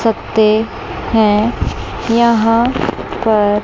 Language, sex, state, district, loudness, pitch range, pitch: Hindi, female, Chandigarh, Chandigarh, -14 LUFS, 215-230 Hz, 225 Hz